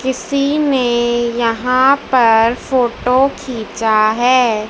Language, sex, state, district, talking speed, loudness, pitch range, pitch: Hindi, female, Madhya Pradesh, Dhar, 90 wpm, -14 LUFS, 230-260 Hz, 245 Hz